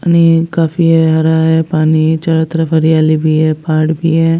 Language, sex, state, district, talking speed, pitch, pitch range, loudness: Hindi, female, Bihar, West Champaran, 190 wpm, 160 Hz, 155-165 Hz, -11 LUFS